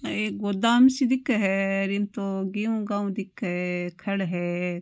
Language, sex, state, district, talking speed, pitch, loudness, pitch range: Marwari, female, Rajasthan, Nagaur, 150 wpm, 200 Hz, -25 LUFS, 190-215 Hz